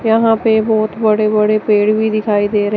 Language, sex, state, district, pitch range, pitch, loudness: Hindi, male, Chandigarh, Chandigarh, 210-220 Hz, 215 Hz, -14 LUFS